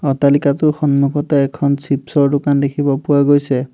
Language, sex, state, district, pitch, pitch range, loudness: Assamese, male, Assam, Hailakandi, 140 Hz, 140-145 Hz, -15 LUFS